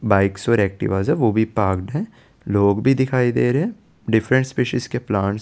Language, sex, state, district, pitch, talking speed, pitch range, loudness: Hindi, male, Chandigarh, Chandigarh, 110 Hz, 210 wpm, 100-125 Hz, -20 LUFS